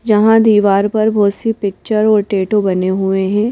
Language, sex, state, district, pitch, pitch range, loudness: Hindi, female, Madhya Pradesh, Bhopal, 210 Hz, 195-215 Hz, -13 LUFS